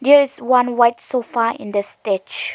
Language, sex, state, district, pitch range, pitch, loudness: English, female, Arunachal Pradesh, Lower Dibang Valley, 205-255 Hz, 235 Hz, -18 LUFS